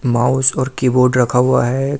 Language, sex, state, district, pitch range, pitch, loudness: Hindi, male, Delhi, New Delhi, 125-135 Hz, 125 Hz, -15 LUFS